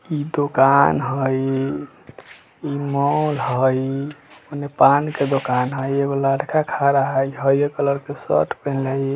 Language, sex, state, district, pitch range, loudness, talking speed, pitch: Bajjika, male, Bihar, Vaishali, 135-145 Hz, -20 LUFS, 145 wpm, 140 Hz